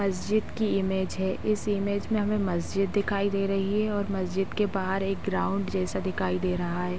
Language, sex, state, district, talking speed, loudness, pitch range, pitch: Hindi, female, Uttar Pradesh, Gorakhpur, 205 wpm, -28 LUFS, 190-205 Hz, 195 Hz